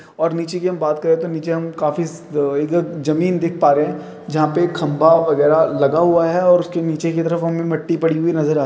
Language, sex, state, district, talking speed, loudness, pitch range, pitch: Hindi, male, Uttarakhand, Uttarkashi, 235 wpm, -17 LUFS, 155-170 Hz, 165 Hz